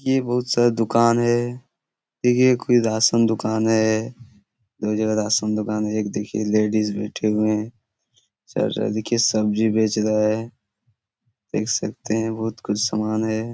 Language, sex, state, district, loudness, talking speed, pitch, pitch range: Hindi, male, Chhattisgarh, Korba, -21 LUFS, 155 wpm, 110 Hz, 105-115 Hz